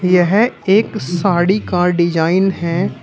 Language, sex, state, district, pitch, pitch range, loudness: Hindi, male, Uttar Pradesh, Shamli, 180 Hz, 170-195 Hz, -15 LUFS